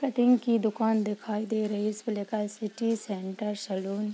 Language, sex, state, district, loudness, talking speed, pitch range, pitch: Hindi, female, Jharkhand, Jamtara, -29 LUFS, 190 wpm, 205-225 Hz, 215 Hz